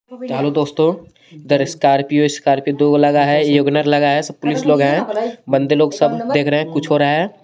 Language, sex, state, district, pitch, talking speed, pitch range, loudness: Hindi, male, Jharkhand, Garhwa, 145 Hz, 200 wpm, 145-155 Hz, -16 LUFS